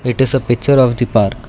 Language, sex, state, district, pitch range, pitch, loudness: English, male, Karnataka, Bangalore, 120-130 Hz, 125 Hz, -14 LUFS